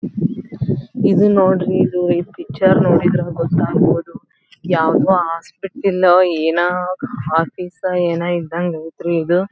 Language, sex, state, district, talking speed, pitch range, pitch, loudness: Kannada, female, Karnataka, Belgaum, 95 wpm, 170-190 Hz, 175 Hz, -17 LUFS